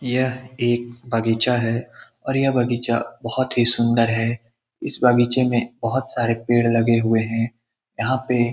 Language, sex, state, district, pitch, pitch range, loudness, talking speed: Hindi, male, Bihar, Lakhisarai, 120 Hz, 115-125 Hz, -19 LUFS, 160 wpm